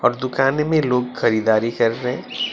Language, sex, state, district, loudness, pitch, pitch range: Hindi, male, West Bengal, Alipurduar, -19 LUFS, 125 Hz, 115-130 Hz